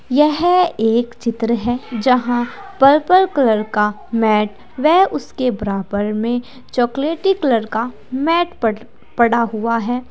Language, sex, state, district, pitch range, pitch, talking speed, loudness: Hindi, female, Uttar Pradesh, Saharanpur, 225-280 Hz, 240 Hz, 125 wpm, -17 LUFS